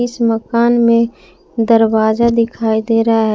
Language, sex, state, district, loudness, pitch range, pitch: Hindi, female, Jharkhand, Palamu, -14 LUFS, 225-235 Hz, 230 Hz